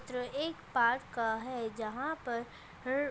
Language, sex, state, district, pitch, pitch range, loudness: Hindi, female, Rajasthan, Nagaur, 250 Hz, 235-275 Hz, -35 LUFS